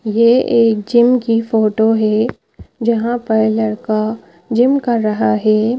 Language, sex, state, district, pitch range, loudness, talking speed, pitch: Hindi, female, Madhya Pradesh, Bhopal, 215-235 Hz, -15 LUFS, 135 wpm, 225 Hz